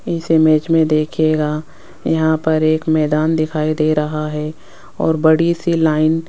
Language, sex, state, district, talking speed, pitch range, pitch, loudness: Hindi, female, Rajasthan, Jaipur, 160 wpm, 155-160 Hz, 155 Hz, -16 LUFS